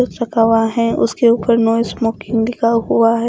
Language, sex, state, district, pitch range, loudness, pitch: Hindi, female, Odisha, Khordha, 225-235 Hz, -15 LUFS, 230 Hz